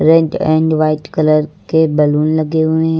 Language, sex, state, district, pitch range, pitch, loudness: Hindi, female, Uttar Pradesh, Lucknow, 155-160 Hz, 155 Hz, -14 LUFS